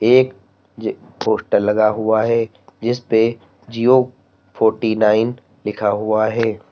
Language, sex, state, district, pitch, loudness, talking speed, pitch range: Hindi, male, Uttar Pradesh, Lalitpur, 110 Hz, -18 LUFS, 115 wpm, 105-115 Hz